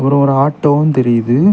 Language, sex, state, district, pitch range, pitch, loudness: Tamil, male, Tamil Nadu, Kanyakumari, 130-150 Hz, 140 Hz, -12 LUFS